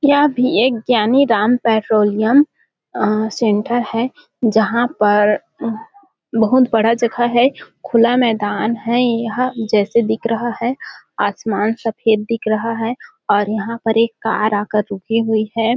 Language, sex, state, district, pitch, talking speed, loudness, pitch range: Hindi, female, Chhattisgarh, Balrampur, 230 Hz, 145 wpm, -16 LUFS, 215-245 Hz